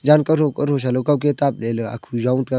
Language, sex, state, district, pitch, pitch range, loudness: Wancho, male, Arunachal Pradesh, Longding, 135 Hz, 125-145 Hz, -19 LUFS